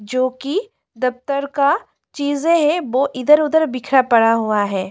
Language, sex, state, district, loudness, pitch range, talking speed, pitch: Hindi, female, Delhi, New Delhi, -17 LUFS, 250-300 Hz, 160 wpm, 275 Hz